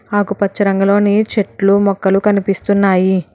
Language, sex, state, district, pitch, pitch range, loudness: Telugu, female, Telangana, Hyderabad, 200 Hz, 195-205 Hz, -14 LUFS